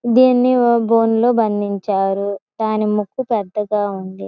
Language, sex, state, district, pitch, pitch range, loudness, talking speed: Telugu, female, Andhra Pradesh, Guntur, 215 Hz, 200-235 Hz, -17 LUFS, 110 wpm